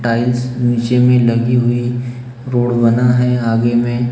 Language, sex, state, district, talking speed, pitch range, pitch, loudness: Hindi, male, Maharashtra, Gondia, 145 wpm, 120-125 Hz, 120 Hz, -14 LUFS